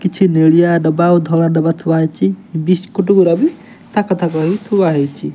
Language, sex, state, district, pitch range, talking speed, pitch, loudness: Odia, male, Odisha, Nuapada, 160-195 Hz, 180 wpm, 175 Hz, -14 LUFS